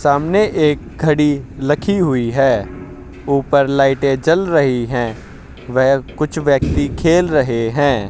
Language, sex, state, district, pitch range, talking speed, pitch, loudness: Hindi, male, Haryana, Jhajjar, 120-150 Hz, 125 wpm, 140 Hz, -16 LUFS